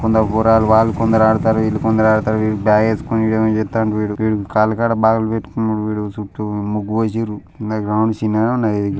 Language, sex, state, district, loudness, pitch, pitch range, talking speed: Telugu, male, Telangana, Nalgonda, -17 LUFS, 110 Hz, 105-110 Hz, 195 wpm